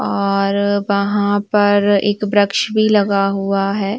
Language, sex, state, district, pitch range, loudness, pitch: Hindi, female, Uttar Pradesh, Varanasi, 200-205 Hz, -16 LUFS, 200 Hz